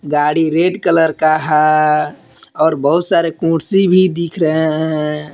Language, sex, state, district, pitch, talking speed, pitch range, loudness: Hindi, male, Jharkhand, Palamu, 160 Hz, 145 wpm, 150-170 Hz, -14 LUFS